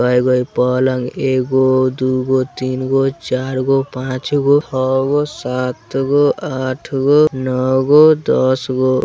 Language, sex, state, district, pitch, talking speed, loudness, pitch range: Bajjika, male, Bihar, Vaishali, 130 Hz, 95 wpm, -15 LUFS, 130-135 Hz